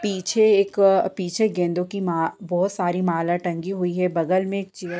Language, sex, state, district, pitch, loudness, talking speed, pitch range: Hindi, female, Bihar, Purnia, 180 Hz, -22 LUFS, 205 wpm, 175-195 Hz